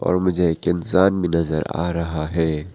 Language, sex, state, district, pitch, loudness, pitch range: Hindi, male, Arunachal Pradesh, Papum Pare, 85 Hz, -21 LUFS, 80-90 Hz